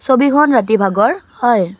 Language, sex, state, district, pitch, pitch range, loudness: Assamese, female, Assam, Kamrup Metropolitan, 245 Hz, 210-280 Hz, -13 LUFS